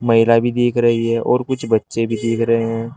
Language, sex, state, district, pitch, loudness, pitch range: Hindi, male, Uttar Pradesh, Shamli, 115 Hz, -17 LUFS, 115-120 Hz